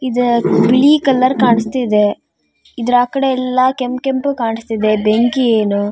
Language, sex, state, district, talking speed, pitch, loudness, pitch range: Kannada, female, Karnataka, Shimoga, 140 wpm, 245 Hz, -14 LUFS, 225-260 Hz